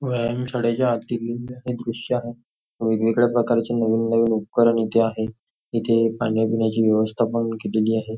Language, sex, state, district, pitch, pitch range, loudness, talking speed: Marathi, male, Maharashtra, Nagpur, 115 Hz, 110-120 Hz, -22 LUFS, 115 wpm